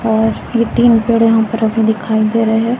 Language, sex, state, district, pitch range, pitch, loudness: Hindi, female, Chhattisgarh, Raipur, 220-230 Hz, 225 Hz, -13 LUFS